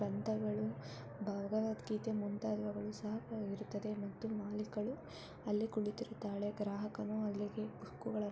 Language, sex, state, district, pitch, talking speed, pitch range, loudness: Kannada, female, Karnataka, Mysore, 210 Hz, 85 wpm, 205-215 Hz, -41 LUFS